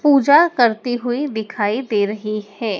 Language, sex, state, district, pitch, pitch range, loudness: Hindi, male, Madhya Pradesh, Dhar, 235 Hz, 215-270 Hz, -18 LUFS